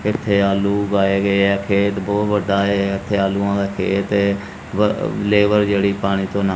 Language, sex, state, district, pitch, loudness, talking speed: Punjabi, male, Punjab, Kapurthala, 100 Hz, -18 LUFS, 175 wpm